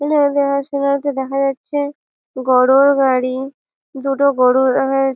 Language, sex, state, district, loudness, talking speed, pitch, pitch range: Bengali, female, West Bengal, Malda, -16 LUFS, 95 wpm, 275 Hz, 265-280 Hz